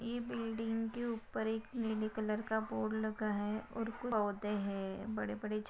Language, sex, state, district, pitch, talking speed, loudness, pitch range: Hindi, female, Maharashtra, Pune, 220 Hz, 190 wpm, -39 LUFS, 210-225 Hz